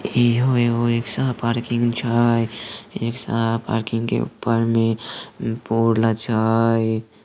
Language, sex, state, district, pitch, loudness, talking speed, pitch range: Maithili, male, Bihar, Samastipur, 115 Hz, -21 LUFS, 150 wpm, 115-120 Hz